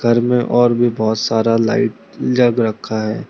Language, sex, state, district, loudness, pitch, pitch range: Hindi, male, Arunachal Pradesh, Lower Dibang Valley, -16 LUFS, 115 Hz, 110-120 Hz